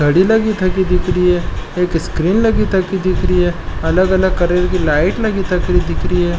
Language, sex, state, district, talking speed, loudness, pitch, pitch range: Marwari, male, Rajasthan, Nagaur, 185 wpm, -15 LUFS, 180 Hz, 165-190 Hz